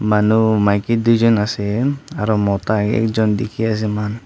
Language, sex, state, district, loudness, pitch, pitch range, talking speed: Nagamese, male, Nagaland, Dimapur, -17 LUFS, 110 Hz, 105-115 Hz, 140 wpm